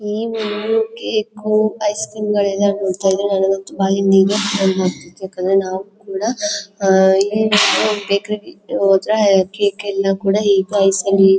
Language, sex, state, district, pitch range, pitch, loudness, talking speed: Kannada, female, Karnataka, Chamarajanagar, 195-210 Hz, 200 Hz, -16 LUFS, 105 wpm